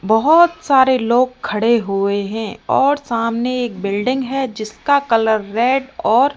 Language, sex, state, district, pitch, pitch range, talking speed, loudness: Hindi, female, Rajasthan, Jaipur, 240 Hz, 220-270 Hz, 150 wpm, -16 LUFS